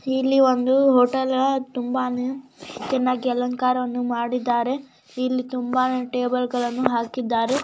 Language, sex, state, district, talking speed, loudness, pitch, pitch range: Kannada, female, Karnataka, Gulbarga, 85 wpm, -22 LUFS, 255 Hz, 245-260 Hz